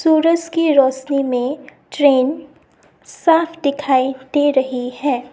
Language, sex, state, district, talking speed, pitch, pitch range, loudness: Hindi, female, Assam, Sonitpur, 110 wpm, 280 Hz, 260-310 Hz, -17 LUFS